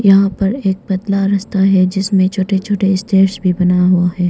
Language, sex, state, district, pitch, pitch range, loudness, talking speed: Hindi, female, Arunachal Pradesh, Longding, 195 Hz, 185-195 Hz, -14 LUFS, 195 wpm